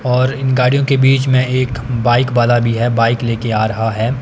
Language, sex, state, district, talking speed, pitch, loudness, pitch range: Hindi, male, Himachal Pradesh, Shimla, 225 wpm, 120 Hz, -14 LUFS, 115-130 Hz